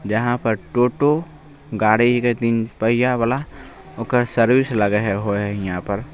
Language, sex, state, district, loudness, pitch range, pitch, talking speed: Maithili, male, Bihar, Begusarai, -19 LUFS, 105-125 Hz, 115 Hz, 155 wpm